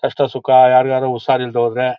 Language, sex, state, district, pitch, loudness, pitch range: Kannada, male, Karnataka, Mysore, 130 Hz, -14 LUFS, 125-130 Hz